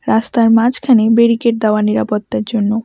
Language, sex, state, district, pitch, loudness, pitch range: Bengali, female, West Bengal, Alipurduar, 225 Hz, -13 LUFS, 210-235 Hz